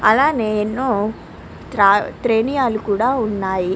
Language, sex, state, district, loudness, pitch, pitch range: Telugu, female, Andhra Pradesh, Krishna, -18 LUFS, 215 Hz, 205-245 Hz